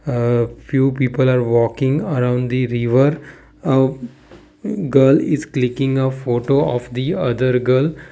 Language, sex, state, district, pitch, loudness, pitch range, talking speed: English, male, Gujarat, Valsad, 130 Hz, -17 LUFS, 125-140 Hz, 135 wpm